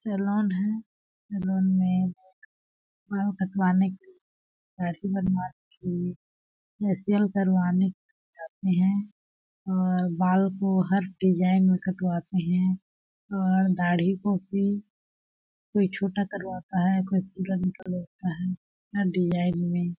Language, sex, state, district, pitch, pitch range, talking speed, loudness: Hindi, female, Chhattisgarh, Balrampur, 185 Hz, 180-195 Hz, 115 wpm, -26 LUFS